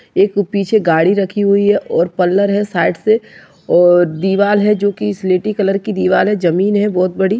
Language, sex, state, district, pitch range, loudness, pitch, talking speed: Hindi, male, Maharashtra, Dhule, 185-205 Hz, -14 LUFS, 200 Hz, 195 wpm